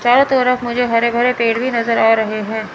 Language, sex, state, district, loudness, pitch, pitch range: Hindi, male, Chandigarh, Chandigarh, -15 LUFS, 235 Hz, 225-245 Hz